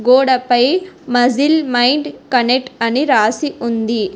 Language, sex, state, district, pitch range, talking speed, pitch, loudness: Telugu, female, Telangana, Hyderabad, 240-275 Hz, 100 wpm, 250 Hz, -15 LUFS